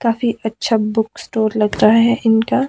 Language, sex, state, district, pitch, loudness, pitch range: Hindi, male, Himachal Pradesh, Shimla, 225 Hz, -16 LUFS, 220-235 Hz